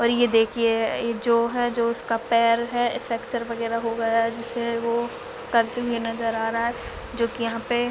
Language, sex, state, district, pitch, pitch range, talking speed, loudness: Hindi, female, Chhattisgarh, Bilaspur, 235 Hz, 230-240 Hz, 195 wpm, -24 LUFS